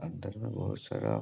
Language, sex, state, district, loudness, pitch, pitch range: Hindi, male, Bihar, Samastipur, -37 LUFS, 120 Hz, 110-130 Hz